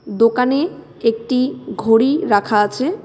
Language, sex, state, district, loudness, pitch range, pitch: Bengali, female, West Bengal, Cooch Behar, -17 LUFS, 225-270 Hz, 230 Hz